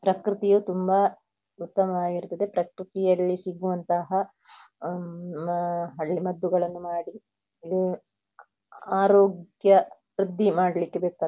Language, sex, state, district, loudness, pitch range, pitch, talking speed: Kannada, female, Karnataka, Dakshina Kannada, -26 LUFS, 175-195 Hz, 180 Hz, 75 wpm